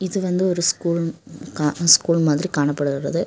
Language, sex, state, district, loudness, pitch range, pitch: Tamil, female, Tamil Nadu, Kanyakumari, -19 LUFS, 150-175 Hz, 170 Hz